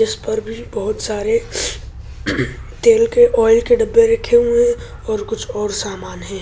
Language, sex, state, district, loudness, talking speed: Hindi, male, Delhi, New Delhi, -17 LUFS, 170 wpm